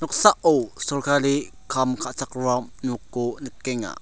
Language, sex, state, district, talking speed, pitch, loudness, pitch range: Garo, male, Meghalaya, South Garo Hills, 75 wpm, 130 Hz, -24 LUFS, 125-140 Hz